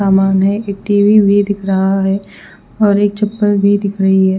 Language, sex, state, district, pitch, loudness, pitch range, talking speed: Hindi, female, Punjab, Fazilka, 200 Hz, -13 LUFS, 195-205 Hz, 205 wpm